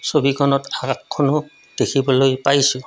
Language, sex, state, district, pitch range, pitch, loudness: Assamese, male, Assam, Kamrup Metropolitan, 135-150 Hz, 140 Hz, -18 LUFS